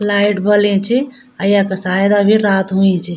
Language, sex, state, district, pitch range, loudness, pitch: Garhwali, female, Uttarakhand, Tehri Garhwal, 190-210 Hz, -14 LUFS, 200 Hz